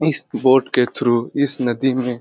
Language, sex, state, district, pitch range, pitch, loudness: Hindi, male, Bihar, Lakhisarai, 120-135 Hz, 130 Hz, -18 LUFS